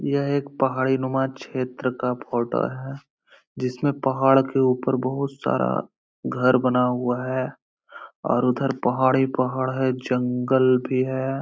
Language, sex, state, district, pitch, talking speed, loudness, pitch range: Hindi, male, Bihar, Araria, 130 Hz, 140 wpm, -23 LUFS, 125-135 Hz